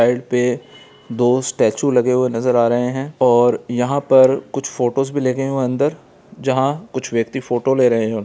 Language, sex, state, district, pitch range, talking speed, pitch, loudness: Hindi, male, Bihar, Gaya, 120-135 Hz, 205 wpm, 125 Hz, -17 LUFS